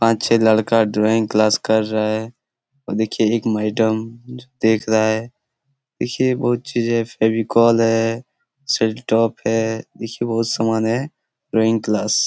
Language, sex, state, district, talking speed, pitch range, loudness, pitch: Hindi, male, Chhattisgarh, Korba, 135 wpm, 110-120 Hz, -18 LUFS, 115 Hz